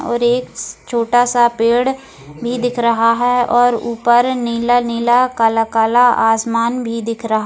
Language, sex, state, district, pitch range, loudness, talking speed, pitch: Hindi, female, Goa, North and South Goa, 230-245 Hz, -15 LUFS, 145 wpm, 235 Hz